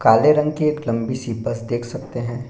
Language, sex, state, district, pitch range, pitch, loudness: Hindi, male, Bihar, Bhagalpur, 115-150 Hz, 120 Hz, -21 LUFS